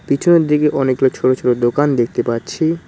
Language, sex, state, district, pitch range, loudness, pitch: Bengali, male, West Bengal, Cooch Behar, 125-150 Hz, -15 LUFS, 135 Hz